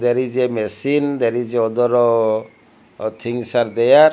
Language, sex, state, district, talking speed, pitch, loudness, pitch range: English, male, Odisha, Malkangiri, 160 wpm, 120 Hz, -18 LUFS, 115-125 Hz